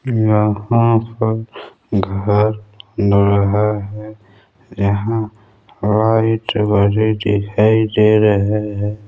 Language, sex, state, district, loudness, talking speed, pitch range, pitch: Hindi, male, Chhattisgarh, Balrampur, -16 LUFS, 80 wpm, 100-110 Hz, 105 Hz